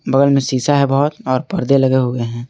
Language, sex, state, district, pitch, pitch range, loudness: Hindi, male, Jharkhand, Garhwa, 135 Hz, 130-140 Hz, -16 LUFS